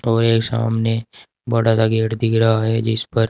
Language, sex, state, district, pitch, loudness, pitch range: Hindi, male, Uttar Pradesh, Saharanpur, 115 Hz, -18 LUFS, 110-115 Hz